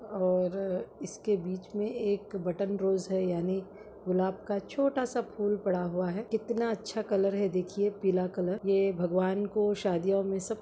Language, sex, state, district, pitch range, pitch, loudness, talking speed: Hindi, female, Chhattisgarh, Bastar, 185-210 Hz, 195 Hz, -31 LUFS, 170 wpm